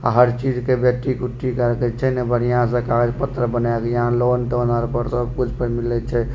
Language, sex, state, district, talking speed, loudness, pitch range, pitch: Maithili, male, Bihar, Supaul, 225 wpm, -20 LUFS, 120-125 Hz, 120 Hz